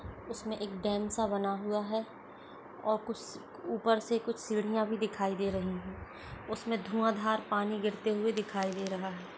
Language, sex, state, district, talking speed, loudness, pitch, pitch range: Hindi, female, Uttarakhand, Uttarkashi, 180 wpm, -34 LUFS, 215 Hz, 200-220 Hz